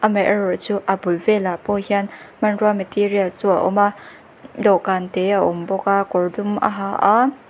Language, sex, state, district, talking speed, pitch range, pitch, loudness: Mizo, female, Mizoram, Aizawl, 200 wpm, 190-205 Hz, 200 Hz, -19 LUFS